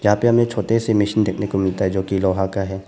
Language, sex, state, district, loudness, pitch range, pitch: Hindi, male, Arunachal Pradesh, Papum Pare, -19 LUFS, 95-110 Hz, 100 Hz